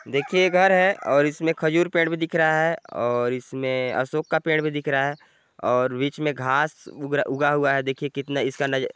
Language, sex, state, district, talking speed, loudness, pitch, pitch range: Hindi, male, Chhattisgarh, Sarguja, 215 wpm, -22 LUFS, 145 Hz, 135-160 Hz